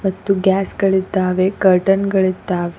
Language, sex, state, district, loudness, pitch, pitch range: Kannada, female, Karnataka, Koppal, -16 LUFS, 190 Hz, 185-195 Hz